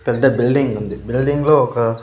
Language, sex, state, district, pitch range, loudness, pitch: Telugu, male, Andhra Pradesh, Sri Satya Sai, 115-135 Hz, -17 LUFS, 125 Hz